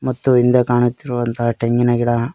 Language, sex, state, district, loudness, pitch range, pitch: Kannada, male, Karnataka, Koppal, -17 LUFS, 120-125 Hz, 120 Hz